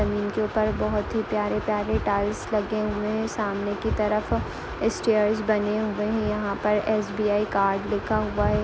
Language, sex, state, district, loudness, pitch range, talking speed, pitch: Hindi, female, Chhattisgarh, Sarguja, -25 LUFS, 205-215 Hz, 175 wpm, 210 Hz